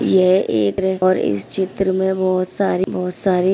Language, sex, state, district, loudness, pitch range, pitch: Hindi, female, Chhattisgarh, Bilaspur, -18 LUFS, 180-190 Hz, 185 Hz